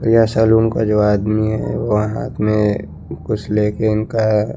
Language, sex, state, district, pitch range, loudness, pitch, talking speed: Hindi, male, Chandigarh, Chandigarh, 105-110 Hz, -17 LUFS, 110 Hz, 170 wpm